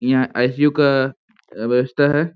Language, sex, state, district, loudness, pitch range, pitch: Hindi, male, Jharkhand, Sahebganj, -18 LUFS, 125-145 Hz, 130 Hz